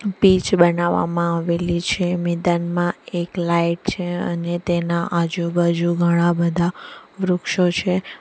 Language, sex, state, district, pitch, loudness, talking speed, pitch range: Gujarati, female, Gujarat, Valsad, 175 Hz, -20 LUFS, 110 wpm, 170-180 Hz